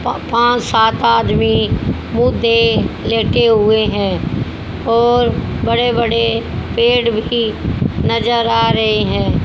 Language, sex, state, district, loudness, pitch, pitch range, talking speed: Hindi, female, Haryana, Jhajjar, -14 LUFS, 230 Hz, 215-235 Hz, 110 wpm